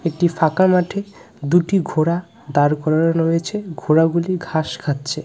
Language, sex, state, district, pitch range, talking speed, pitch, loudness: Bengali, male, West Bengal, Cooch Behar, 155-175 Hz, 125 wpm, 165 Hz, -19 LUFS